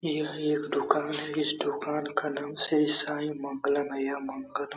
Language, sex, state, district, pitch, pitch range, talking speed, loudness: Hindi, male, Bihar, Saran, 150 Hz, 145-150 Hz, 175 wpm, -28 LUFS